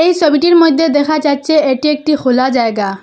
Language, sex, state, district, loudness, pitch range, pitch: Bengali, female, Assam, Hailakandi, -12 LUFS, 260-315 Hz, 300 Hz